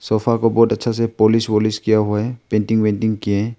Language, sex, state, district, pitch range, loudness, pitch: Hindi, male, Arunachal Pradesh, Longding, 105-115 Hz, -17 LUFS, 110 Hz